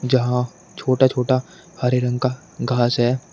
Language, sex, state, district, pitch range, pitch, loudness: Hindi, male, Uttar Pradesh, Shamli, 125-130 Hz, 125 Hz, -20 LUFS